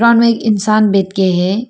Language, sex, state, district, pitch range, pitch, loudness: Hindi, female, Arunachal Pradesh, Papum Pare, 195-230 Hz, 215 Hz, -12 LUFS